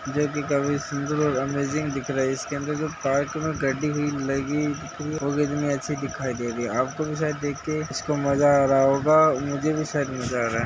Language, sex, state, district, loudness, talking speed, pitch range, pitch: Hindi, male, Uttar Pradesh, Hamirpur, -24 LUFS, 200 wpm, 135-150 Hz, 145 Hz